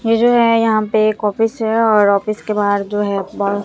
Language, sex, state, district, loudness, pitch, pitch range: Hindi, female, Bihar, Katihar, -15 LUFS, 215 Hz, 205-225 Hz